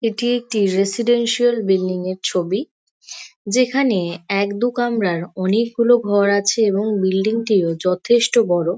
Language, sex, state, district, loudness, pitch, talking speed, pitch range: Bengali, female, West Bengal, Kolkata, -18 LUFS, 205 Hz, 130 wpm, 190-235 Hz